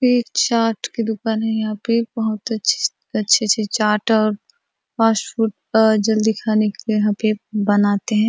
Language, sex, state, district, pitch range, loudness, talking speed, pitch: Hindi, female, Chhattisgarh, Bastar, 215-225 Hz, -19 LUFS, 180 wpm, 220 Hz